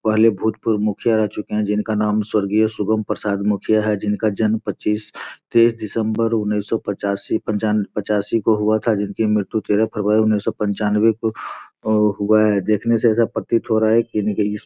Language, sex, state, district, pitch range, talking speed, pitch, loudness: Hindi, male, Bihar, Gopalganj, 105-110 Hz, 185 wpm, 105 Hz, -19 LUFS